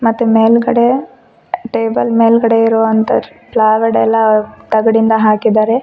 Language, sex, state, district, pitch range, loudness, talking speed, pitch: Kannada, female, Karnataka, Koppal, 220-230 Hz, -12 LUFS, 105 wpm, 225 Hz